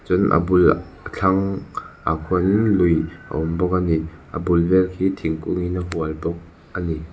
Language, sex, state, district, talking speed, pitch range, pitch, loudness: Mizo, male, Mizoram, Aizawl, 200 wpm, 80-90 Hz, 90 Hz, -21 LUFS